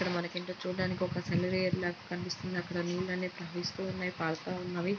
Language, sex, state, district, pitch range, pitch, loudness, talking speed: Telugu, female, Andhra Pradesh, Guntur, 175-185 Hz, 180 Hz, -35 LUFS, 190 wpm